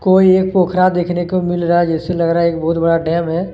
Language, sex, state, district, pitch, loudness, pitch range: Hindi, male, Chhattisgarh, Kabirdham, 175 Hz, -15 LUFS, 170-185 Hz